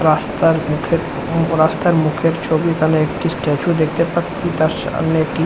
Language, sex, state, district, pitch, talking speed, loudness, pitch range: Bengali, male, West Bengal, Jhargram, 160 Hz, 145 wpm, -17 LUFS, 155-165 Hz